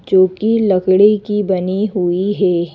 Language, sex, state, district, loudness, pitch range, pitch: Hindi, female, Madhya Pradesh, Bhopal, -14 LUFS, 185-205 Hz, 190 Hz